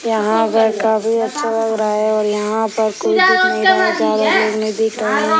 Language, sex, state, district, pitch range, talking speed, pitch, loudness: Hindi, female, Bihar, Sitamarhi, 215-230 Hz, 235 wpm, 220 Hz, -15 LUFS